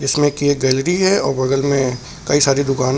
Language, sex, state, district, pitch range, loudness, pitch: Hindi, male, Uttar Pradesh, Lucknow, 130-145 Hz, -16 LUFS, 140 Hz